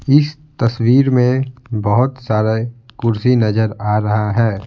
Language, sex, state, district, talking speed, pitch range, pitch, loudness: Hindi, male, Bihar, Patna, 130 wpm, 110-130 Hz, 115 Hz, -16 LUFS